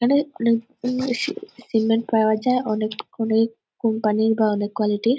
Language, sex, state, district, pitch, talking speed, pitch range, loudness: Bengali, female, West Bengal, Purulia, 225 Hz, 150 wpm, 220-250 Hz, -22 LUFS